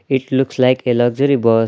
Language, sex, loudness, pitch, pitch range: English, male, -16 LUFS, 130 Hz, 120-135 Hz